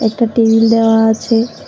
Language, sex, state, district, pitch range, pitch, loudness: Bengali, female, Tripura, West Tripura, 225-230 Hz, 225 Hz, -12 LUFS